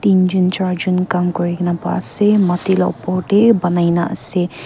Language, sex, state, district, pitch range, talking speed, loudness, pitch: Nagamese, female, Nagaland, Kohima, 175-190 Hz, 155 wpm, -16 LUFS, 180 Hz